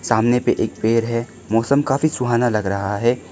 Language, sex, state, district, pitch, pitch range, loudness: Hindi, male, Arunachal Pradesh, Lower Dibang Valley, 120 Hz, 110-125 Hz, -19 LUFS